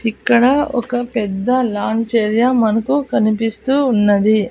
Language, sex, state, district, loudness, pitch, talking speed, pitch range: Telugu, female, Andhra Pradesh, Annamaya, -16 LUFS, 230 Hz, 105 wpm, 215-250 Hz